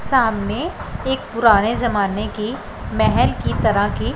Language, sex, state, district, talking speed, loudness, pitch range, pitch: Hindi, male, Punjab, Pathankot, 130 wpm, -19 LUFS, 210-255 Hz, 225 Hz